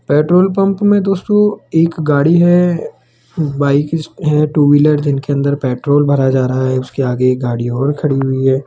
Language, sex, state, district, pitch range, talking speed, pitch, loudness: Hindi, male, Rajasthan, Jaipur, 130-165 Hz, 180 wpm, 145 Hz, -13 LUFS